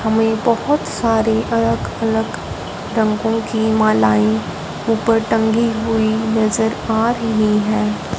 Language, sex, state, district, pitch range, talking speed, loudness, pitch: Hindi, female, Punjab, Fazilka, 220-225 Hz, 110 wpm, -17 LUFS, 220 Hz